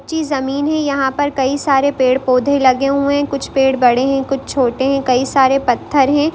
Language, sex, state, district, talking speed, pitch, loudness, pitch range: Hindi, female, Bihar, Sitamarhi, 210 wpm, 275 Hz, -15 LUFS, 265-280 Hz